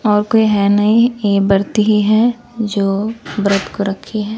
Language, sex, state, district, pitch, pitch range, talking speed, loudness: Hindi, female, Bihar, West Champaran, 210 Hz, 200-220 Hz, 180 wpm, -15 LUFS